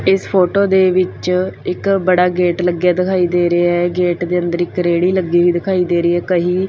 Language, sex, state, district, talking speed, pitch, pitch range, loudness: Punjabi, female, Punjab, Fazilka, 225 wpm, 180 Hz, 175-185 Hz, -15 LUFS